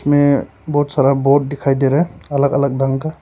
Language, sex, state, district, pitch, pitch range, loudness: Hindi, male, Arunachal Pradesh, Papum Pare, 140 Hz, 135-145 Hz, -16 LUFS